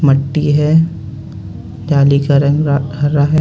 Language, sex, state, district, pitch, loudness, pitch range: Hindi, male, Jharkhand, Ranchi, 140 Hz, -13 LUFS, 135-150 Hz